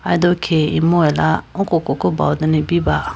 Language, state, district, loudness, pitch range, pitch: Idu Mishmi, Arunachal Pradesh, Lower Dibang Valley, -17 LUFS, 150-175 Hz, 160 Hz